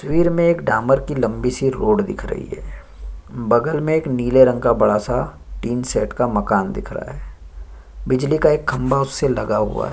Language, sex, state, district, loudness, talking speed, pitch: Hindi, male, Chhattisgarh, Sukma, -19 LUFS, 210 wpm, 125 Hz